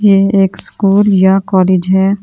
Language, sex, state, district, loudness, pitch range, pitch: Hindi, female, Delhi, New Delhi, -11 LUFS, 190-200 Hz, 195 Hz